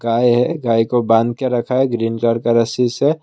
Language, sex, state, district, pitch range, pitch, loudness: Hindi, male, Assam, Kamrup Metropolitan, 115-125 Hz, 120 Hz, -16 LUFS